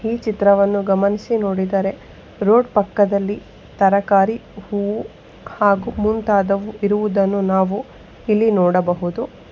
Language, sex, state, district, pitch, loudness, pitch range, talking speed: Kannada, female, Karnataka, Bangalore, 200 Hz, -18 LUFS, 195-215 Hz, 90 wpm